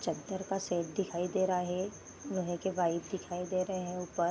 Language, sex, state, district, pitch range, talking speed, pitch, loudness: Hindi, female, Bihar, Darbhanga, 175-190 Hz, 210 wpm, 180 Hz, -35 LUFS